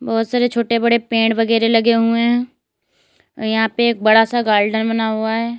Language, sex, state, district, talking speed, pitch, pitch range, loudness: Hindi, female, Uttar Pradesh, Lalitpur, 195 wpm, 230 Hz, 225-235 Hz, -16 LUFS